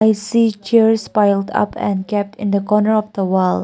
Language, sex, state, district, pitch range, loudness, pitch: English, female, Nagaland, Kohima, 200-220 Hz, -16 LUFS, 210 Hz